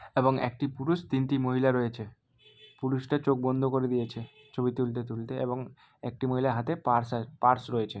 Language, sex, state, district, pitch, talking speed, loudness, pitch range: Bengali, male, West Bengal, Malda, 130 Hz, 165 wpm, -29 LUFS, 120-135 Hz